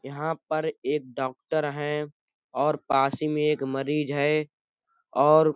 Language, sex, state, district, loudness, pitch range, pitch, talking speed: Hindi, male, Uttar Pradesh, Budaun, -26 LUFS, 145-155 Hz, 150 Hz, 150 wpm